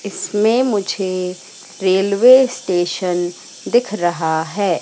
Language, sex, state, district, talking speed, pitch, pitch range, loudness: Hindi, female, Madhya Pradesh, Katni, 85 wpm, 190 Hz, 175-215 Hz, -17 LUFS